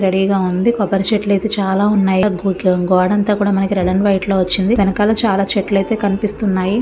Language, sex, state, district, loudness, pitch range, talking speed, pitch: Telugu, female, Andhra Pradesh, Visakhapatnam, -15 LUFS, 190-205 Hz, 175 wpm, 195 Hz